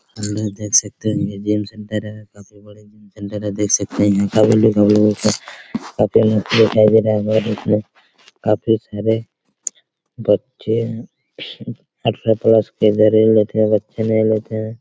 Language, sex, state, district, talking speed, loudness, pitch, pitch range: Hindi, male, Chhattisgarh, Raigarh, 95 wpm, -17 LUFS, 105 Hz, 105-110 Hz